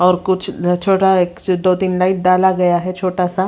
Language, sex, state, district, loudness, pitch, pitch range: Hindi, female, Haryana, Rohtak, -15 LUFS, 185 Hz, 180-190 Hz